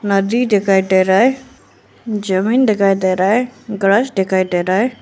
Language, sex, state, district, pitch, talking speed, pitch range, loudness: Hindi, female, Arunachal Pradesh, Lower Dibang Valley, 200 Hz, 180 wpm, 190-230 Hz, -15 LUFS